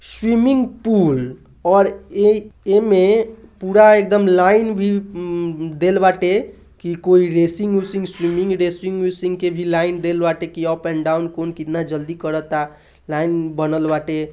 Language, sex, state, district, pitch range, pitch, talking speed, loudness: Hindi, male, Bihar, East Champaran, 165-195 Hz, 175 Hz, 150 wpm, -17 LUFS